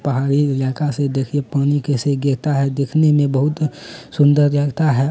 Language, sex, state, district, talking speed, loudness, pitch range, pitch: Hindi, male, Bihar, Bhagalpur, 165 wpm, -17 LUFS, 140-145 Hz, 145 Hz